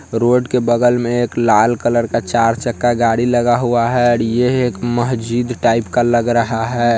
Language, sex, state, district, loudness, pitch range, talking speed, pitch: Hindi, male, Bihar, Sitamarhi, -15 LUFS, 115-120 Hz, 190 wpm, 120 Hz